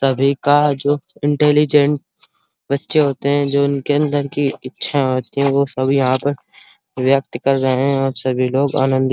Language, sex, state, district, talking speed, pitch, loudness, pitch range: Hindi, male, Uttar Pradesh, Hamirpur, 175 wpm, 140 Hz, -17 LUFS, 135-145 Hz